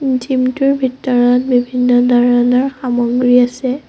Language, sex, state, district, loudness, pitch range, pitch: Assamese, female, Assam, Sonitpur, -13 LUFS, 245-260 Hz, 250 Hz